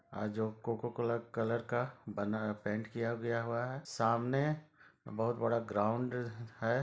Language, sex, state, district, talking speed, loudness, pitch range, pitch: Hindi, male, Bihar, Sitamarhi, 165 wpm, -37 LUFS, 110-120 Hz, 115 Hz